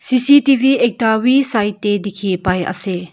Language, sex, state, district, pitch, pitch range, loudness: Nagamese, female, Nagaland, Kohima, 215 Hz, 190-260 Hz, -14 LUFS